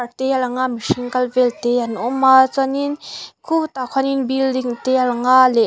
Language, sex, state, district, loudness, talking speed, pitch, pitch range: Mizo, female, Mizoram, Aizawl, -18 LUFS, 210 wpm, 255 Hz, 245-265 Hz